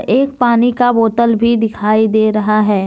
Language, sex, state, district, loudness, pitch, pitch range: Hindi, female, Jharkhand, Deoghar, -13 LUFS, 225 Hz, 215-235 Hz